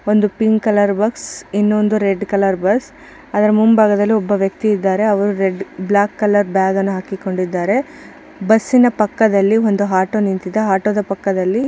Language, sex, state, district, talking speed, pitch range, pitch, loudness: Kannada, female, Karnataka, Chamarajanagar, 145 wpm, 195-215 Hz, 205 Hz, -16 LUFS